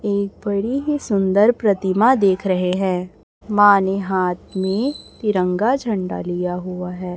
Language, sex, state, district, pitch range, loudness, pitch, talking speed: Hindi, male, Chhattisgarh, Raipur, 185-210 Hz, -19 LUFS, 195 Hz, 140 wpm